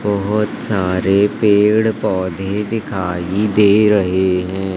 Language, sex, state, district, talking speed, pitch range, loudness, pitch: Hindi, male, Madhya Pradesh, Katni, 100 wpm, 95-105 Hz, -16 LUFS, 100 Hz